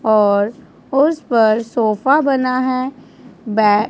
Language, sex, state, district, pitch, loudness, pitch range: Hindi, male, Punjab, Pathankot, 235 Hz, -16 LUFS, 215-265 Hz